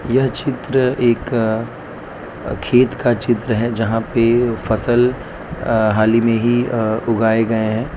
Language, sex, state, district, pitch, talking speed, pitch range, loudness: Hindi, male, Gujarat, Valsad, 115 Hz, 145 wpm, 115-120 Hz, -17 LUFS